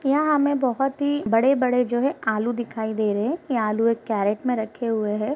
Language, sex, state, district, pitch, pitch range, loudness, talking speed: Hindi, female, Uttar Pradesh, Gorakhpur, 240 Hz, 220-275 Hz, -23 LUFS, 225 wpm